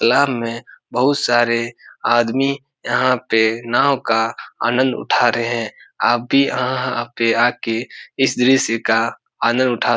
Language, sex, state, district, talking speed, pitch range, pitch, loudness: Hindi, male, Bihar, Supaul, 140 wpm, 115-130 Hz, 120 Hz, -18 LUFS